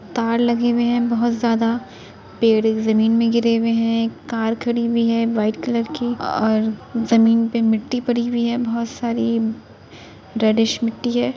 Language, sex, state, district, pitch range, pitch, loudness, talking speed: Hindi, female, Uttar Pradesh, Jalaun, 225-235 Hz, 230 Hz, -19 LUFS, 165 wpm